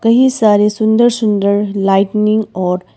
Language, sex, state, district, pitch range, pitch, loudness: Hindi, female, Arunachal Pradesh, Papum Pare, 200-220 Hz, 210 Hz, -13 LUFS